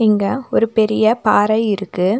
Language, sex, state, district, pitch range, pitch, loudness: Tamil, female, Tamil Nadu, Nilgiris, 205-220 Hz, 215 Hz, -16 LUFS